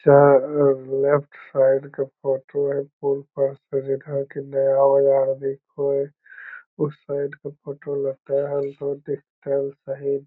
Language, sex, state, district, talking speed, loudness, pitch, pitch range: Magahi, male, Bihar, Lakhisarai, 165 wpm, -22 LUFS, 140 Hz, 135-140 Hz